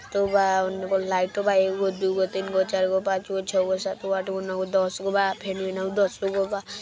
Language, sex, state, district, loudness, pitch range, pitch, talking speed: Maithili, male, Bihar, Vaishali, -25 LUFS, 190-195 Hz, 190 Hz, 200 wpm